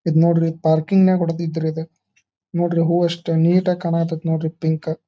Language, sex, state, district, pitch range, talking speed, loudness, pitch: Kannada, male, Karnataka, Dharwad, 160-170 Hz, 190 wpm, -19 LUFS, 165 Hz